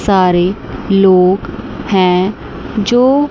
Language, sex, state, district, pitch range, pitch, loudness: Hindi, female, Chandigarh, Chandigarh, 185-215 Hz, 195 Hz, -12 LUFS